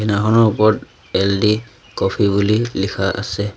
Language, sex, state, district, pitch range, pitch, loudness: Assamese, male, Assam, Sonitpur, 100-110 Hz, 105 Hz, -17 LUFS